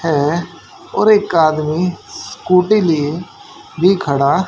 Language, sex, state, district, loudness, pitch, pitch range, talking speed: Hindi, male, Haryana, Jhajjar, -15 LUFS, 170 Hz, 155-185 Hz, 105 wpm